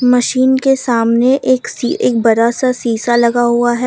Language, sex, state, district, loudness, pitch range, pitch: Hindi, female, Jharkhand, Deoghar, -13 LUFS, 235-255 Hz, 240 Hz